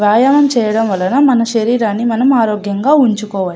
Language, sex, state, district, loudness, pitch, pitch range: Telugu, female, Andhra Pradesh, Anantapur, -12 LUFS, 225 Hz, 210-255 Hz